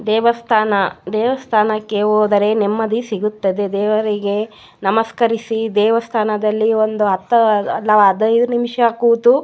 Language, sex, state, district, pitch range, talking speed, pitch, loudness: Kannada, female, Karnataka, Bellary, 210-230 Hz, 90 wpm, 215 Hz, -16 LUFS